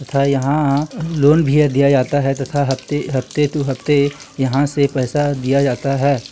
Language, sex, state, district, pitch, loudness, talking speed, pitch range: Hindi, male, Chhattisgarh, Kabirdham, 140 Hz, -17 LUFS, 180 wpm, 135-145 Hz